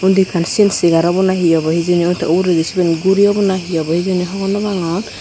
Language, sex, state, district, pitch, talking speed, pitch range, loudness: Chakma, female, Tripura, Unakoti, 180 Hz, 240 wpm, 170-190 Hz, -15 LUFS